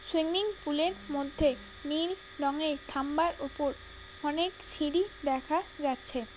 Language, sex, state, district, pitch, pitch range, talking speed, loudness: Bengali, female, West Bengal, Kolkata, 305 Hz, 280-340 Hz, 115 wpm, -32 LUFS